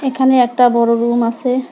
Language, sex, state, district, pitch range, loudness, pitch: Bengali, female, West Bengal, Alipurduar, 235-260 Hz, -14 LUFS, 245 Hz